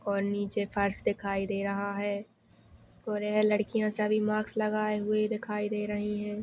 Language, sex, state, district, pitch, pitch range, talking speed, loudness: Hindi, female, Maharashtra, Pune, 210 Hz, 200-215 Hz, 170 wpm, -31 LUFS